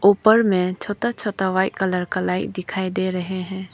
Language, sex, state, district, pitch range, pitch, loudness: Hindi, female, Arunachal Pradesh, Papum Pare, 185-200 Hz, 190 Hz, -21 LUFS